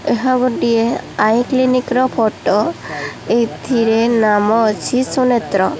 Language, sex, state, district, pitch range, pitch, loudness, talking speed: Odia, female, Odisha, Khordha, 225-255 Hz, 235 Hz, -15 LUFS, 105 wpm